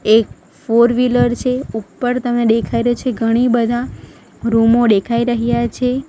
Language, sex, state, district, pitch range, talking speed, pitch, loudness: Gujarati, female, Gujarat, Valsad, 230-245 Hz, 140 wpm, 235 Hz, -16 LUFS